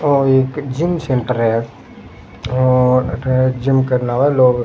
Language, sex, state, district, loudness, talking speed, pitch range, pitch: Rajasthani, male, Rajasthan, Churu, -16 LUFS, 155 wpm, 125-135 Hz, 130 Hz